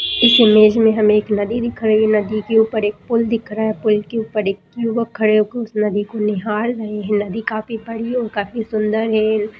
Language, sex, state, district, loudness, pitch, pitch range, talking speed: Hindi, female, Bihar, Madhepura, -17 LUFS, 215 Hz, 210-225 Hz, 230 wpm